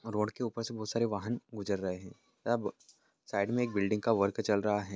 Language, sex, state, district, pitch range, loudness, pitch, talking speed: Hindi, male, Andhra Pradesh, Krishna, 100-115 Hz, -34 LUFS, 105 Hz, 230 wpm